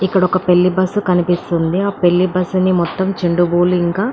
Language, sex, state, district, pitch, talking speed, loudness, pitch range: Telugu, female, Andhra Pradesh, Anantapur, 180 Hz, 160 wpm, -15 LUFS, 175-185 Hz